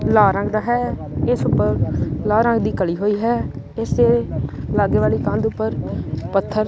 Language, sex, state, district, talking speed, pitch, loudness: Punjabi, male, Punjab, Kapurthala, 170 wpm, 150 Hz, -19 LUFS